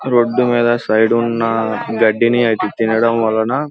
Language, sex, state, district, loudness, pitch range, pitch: Telugu, male, Andhra Pradesh, Guntur, -15 LUFS, 110-120 Hz, 115 Hz